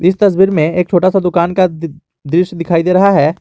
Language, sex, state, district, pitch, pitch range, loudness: Hindi, male, Jharkhand, Garhwa, 180 Hz, 165-190 Hz, -12 LUFS